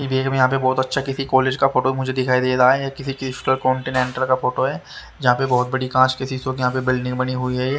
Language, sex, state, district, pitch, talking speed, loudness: Hindi, male, Haryana, Rohtak, 130 Hz, 275 wpm, -20 LUFS